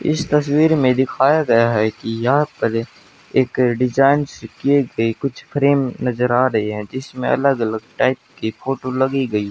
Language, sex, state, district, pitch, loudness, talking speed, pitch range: Hindi, male, Haryana, Jhajjar, 130 Hz, -18 LUFS, 175 wpm, 115-140 Hz